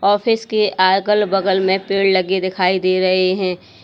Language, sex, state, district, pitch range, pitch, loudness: Hindi, female, Uttar Pradesh, Lalitpur, 185-200 Hz, 190 Hz, -16 LUFS